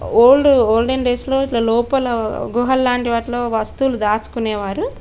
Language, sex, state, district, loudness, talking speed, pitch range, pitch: Telugu, female, Telangana, Karimnagar, -17 LUFS, 110 wpm, 225-260 Hz, 240 Hz